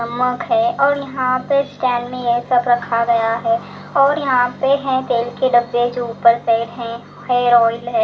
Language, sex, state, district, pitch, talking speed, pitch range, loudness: Hindi, female, Delhi, New Delhi, 245 Hz, 195 wpm, 235-260 Hz, -17 LUFS